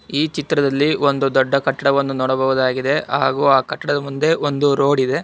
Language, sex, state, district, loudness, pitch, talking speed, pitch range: Kannada, male, Karnataka, Bangalore, -17 LUFS, 140 Hz, 150 wpm, 135-145 Hz